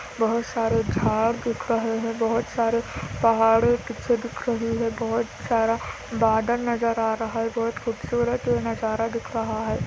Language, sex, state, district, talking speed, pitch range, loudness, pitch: Hindi, female, Andhra Pradesh, Anantapur, 160 wpm, 225-235 Hz, -24 LUFS, 230 Hz